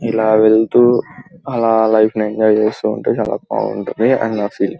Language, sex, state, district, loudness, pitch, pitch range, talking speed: Telugu, male, Andhra Pradesh, Guntur, -15 LUFS, 110 Hz, 110-115 Hz, 150 wpm